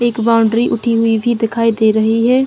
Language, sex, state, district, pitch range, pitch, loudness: Hindi, female, Chhattisgarh, Bilaspur, 225-235 Hz, 230 Hz, -14 LUFS